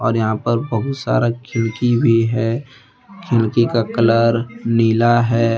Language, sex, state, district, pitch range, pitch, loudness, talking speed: Hindi, male, Jharkhand, Deoghar, 115-120 Hz, 115 Hz, -17 LUFS, 130 wpm